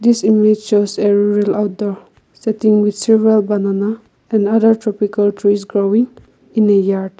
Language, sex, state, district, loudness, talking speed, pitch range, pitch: English, female, Nagaland, Kohima, -15 LUFS, 150 wpm, 205-220 Hz, 210 Hz